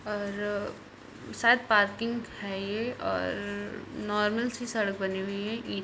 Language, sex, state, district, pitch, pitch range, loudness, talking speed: Hindi, female, Bihar, Purnia, 210 Hz, 205-230 Hz, -30 LUFS, 115 wpm